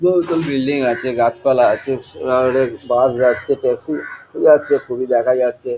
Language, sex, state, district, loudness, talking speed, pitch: Bengali, male, West Bengal, Kolkata, -17 LUFS, 135 wpm, 135 Hz